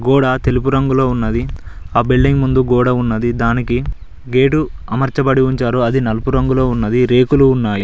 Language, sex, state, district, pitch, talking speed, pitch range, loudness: Telugu, male, Telangana, Mahabubabad, 125 Hz, 145 wpm, 120-130 Hz, -15 LUFS